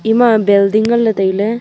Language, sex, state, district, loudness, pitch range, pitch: Wancho, female, Arunachal Pradesh, Longding, -12 LUFS, 200-230 Hz, 220 Hz